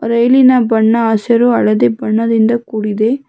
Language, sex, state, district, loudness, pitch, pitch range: Kannada, female, Karnataka, Bangalore, -12 LUFS, 225 Hz, 215-235 Hz